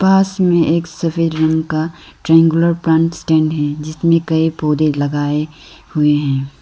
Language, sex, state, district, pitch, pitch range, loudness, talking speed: Hindi, female, Arunachal Pradesh, Lower Dibang Valley, 160 Hz, 150-165 Hz, -15 LUFS, 145 wpm